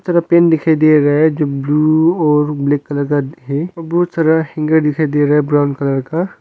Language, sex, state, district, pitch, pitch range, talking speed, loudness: Hindi, male, Arunachal Pradesh, Longding, 155 Hz, 145-160 Hz, 205 wpm, -14 LUFS